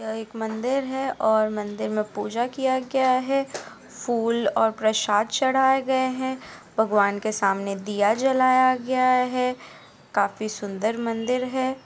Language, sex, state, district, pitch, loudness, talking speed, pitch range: Hindi, female, Andhra Pradesh, Anantapur, 230 Hz, -23 LUFS, 140 wpm, 215-260 Hz